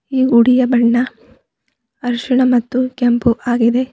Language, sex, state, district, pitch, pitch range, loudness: Kannada, female, Karnataka, Bidar, 245 Hz, 240-255 Hz, -15 LUFS